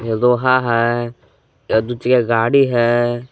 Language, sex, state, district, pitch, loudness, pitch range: Hindi, male, Jharkhand, Palamu, 120 Hz, -16 LUFS, 115-125 Hz